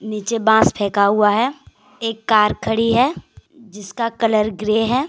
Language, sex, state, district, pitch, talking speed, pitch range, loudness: Hindi, female, Jharkhand, Deoghar, 220 Hz, 155 wpm, 210-230 Hz, -17 LUFS